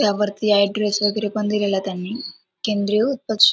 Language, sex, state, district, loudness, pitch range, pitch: Marathi, female, Maharashtra, Aurangabad, -21 LUFS, 205-215 Hz, 210 Hz